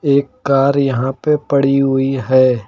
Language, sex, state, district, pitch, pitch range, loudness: Hindi, male, Uttar Pradesh, Lucknow, 135 Hz, 130-140 Hz, -15 LUFS